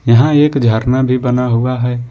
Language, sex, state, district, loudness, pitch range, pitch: Hindi, male, Jharkhand, Ranchi, -13 LUFS, 120-130 Hz, 125 Hz